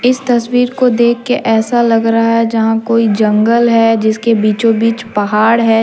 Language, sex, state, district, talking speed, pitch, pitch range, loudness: Hindi, female, Jharkhand, Deoghar, 185 wpm, 230 Hz, 225-235 Hz, -12 LUFS